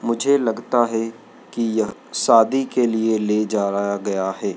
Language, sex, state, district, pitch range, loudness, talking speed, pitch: Hindi, male, Madhya Pradesh, Dhar, 105-120 Hz, -20 LUFS, 160 wpm, 115 Hz